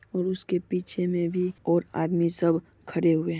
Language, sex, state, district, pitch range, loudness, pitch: Hindi, female, Bihar, Supaul, 170-180 Hz, -27 LUFS, 175 Hz